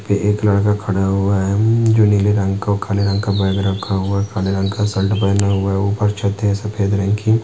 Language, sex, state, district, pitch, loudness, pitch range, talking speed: Hindi, male, Maharashtra, Nagpur, 100 Hz, -17 LUFS, 100-105 Hz, 240 wpm